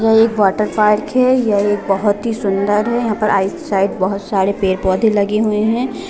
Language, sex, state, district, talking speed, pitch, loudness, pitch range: Hindi, female, Jharkhand, Jamtara, 185 wpm, 210 Hz, -15 LUFS, 195-220 Hz